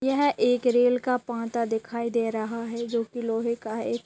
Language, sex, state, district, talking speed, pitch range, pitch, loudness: Hindi, female, Bihar, Lakhisarai, 205 wpm, 230-245 Hz, 235 Hz, -26 LUFS